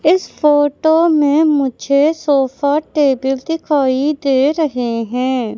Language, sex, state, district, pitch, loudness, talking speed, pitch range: Hindi, female, Madhya Pradesh, Katni, 285 Hz, -15 LUFS, 110 wpm, 265-310 Hz